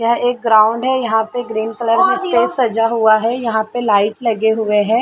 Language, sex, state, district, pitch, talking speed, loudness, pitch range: Hindi, female, Chhattisgarh, Bilaspur, 230 Hz, 240 wpm, -15 LUFS, 220-245 Hz